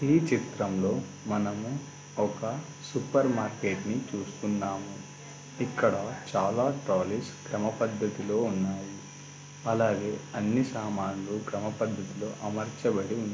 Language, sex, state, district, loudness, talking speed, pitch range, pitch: Telugu, male, Telangana, Karimnagar, -31 LUFS, 85 wpm, 100-130 Hz, 110 Hz